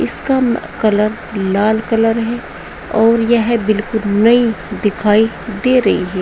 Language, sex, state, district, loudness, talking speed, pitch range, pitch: Hindi, female, Uttar Pradesh, Saharanpur, -15 LUFS, 125 wpm, 210-235 Hz, 220 Hz